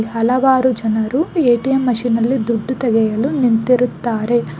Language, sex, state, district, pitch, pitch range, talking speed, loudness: Kannada, female, Karnataka, Bangalore, 240 Hz, 225-260 Hz, 115 wpm, -16 LUFS